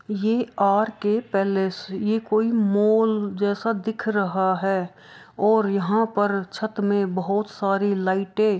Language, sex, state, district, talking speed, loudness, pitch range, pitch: Hindi, female, Bihar, Saharsa, 135 wpm, -23 LUFS, 195-220 Hz, 205 Hz